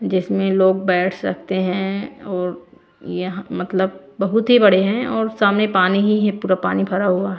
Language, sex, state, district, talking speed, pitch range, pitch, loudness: Hindi, female, Bihar, Kaimur, 160 wpm, 185-205 Hz, 190 Hz, -18 LUFS